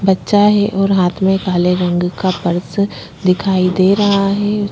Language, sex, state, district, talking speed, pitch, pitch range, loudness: Hindi, female, Chhattisgarh, Korba, 165 wpm, 190 Hz, 180-200 Hz, -14 LUFS